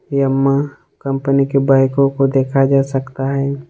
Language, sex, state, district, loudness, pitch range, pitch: Hindi, male, Jharkhand, Ranchi, -15 LUFS, 135-140 Hz, 135 Hz